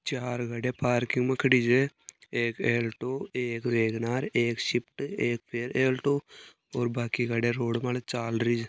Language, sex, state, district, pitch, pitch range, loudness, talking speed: Marwari, male, Rajasthan, Nagaur, 120 Hz, 120-125 Hz, -28 LUFS, 145 wpm